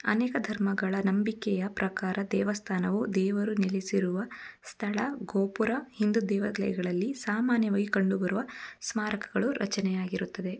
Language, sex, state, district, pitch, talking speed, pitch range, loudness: Kannada, female, Karnataka, Shimoga, 205 Hz, 85 wpm, 195-215 Hz, -30 LUFS